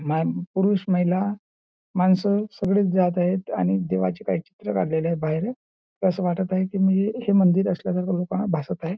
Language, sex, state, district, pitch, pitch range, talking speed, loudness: Marathi, male, Maharashtra, Nagpur, 185 Hz, 170-195 Hz, 135 wpm, -23 LUFS